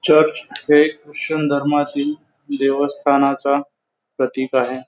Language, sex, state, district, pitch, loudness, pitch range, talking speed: Marathi, male, Maharashtra, Pune, 145 Hz, -18 LUFS, 140-150 Hz, 85 wpm